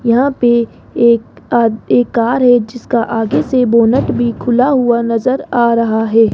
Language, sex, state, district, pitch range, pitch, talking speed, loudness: Hindi, female, Rajasthan, Jaipur, 230-245 Hz, 235 Hz, 160 wpm, -13 LUFS